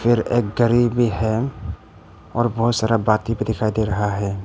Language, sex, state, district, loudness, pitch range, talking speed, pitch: Hindi, male, Arunachal Pradesh, Papum Pare, -20 LUFS, 105-120 Hz, 175 wpm, 110 Hz